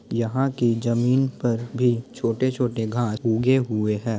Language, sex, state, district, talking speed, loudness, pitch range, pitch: Hindi, male, Bihar, Muzaffarpur, 145 wpm, -23 LUFS, 115-125 Hz, 120 Hz